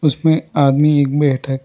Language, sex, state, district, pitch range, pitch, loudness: Hindi, male, Karnataka, Bangalore, 140-150 Hz, 145 Hz, -15 LUFS